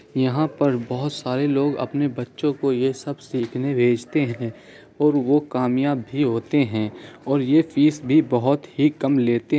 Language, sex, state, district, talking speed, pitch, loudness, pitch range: Hindi, male, Uttar Pradesh, Muzaffarnagar, 175 wpm, 140 Hz, -21 LUFS, 125-145 Hz